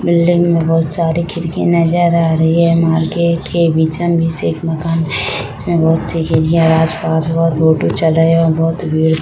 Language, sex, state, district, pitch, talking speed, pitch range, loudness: Hindi, female, Jharkhand, Sahebganj, 165 Hz, 210 wpm, 160-170 Hz, -14 LUFS